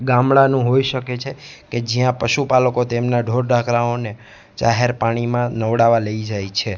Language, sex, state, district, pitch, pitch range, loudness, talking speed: Gujarati, male, Gujarat, Gandhinagar, 120 Hz, 115-125 Hz, -18 LUFS, 150 wpm